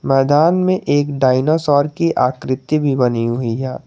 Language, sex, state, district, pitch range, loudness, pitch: Hindi, male, Jharkhand, Garhwa, 130-155 Hz, -16 LUFS, 140 Hz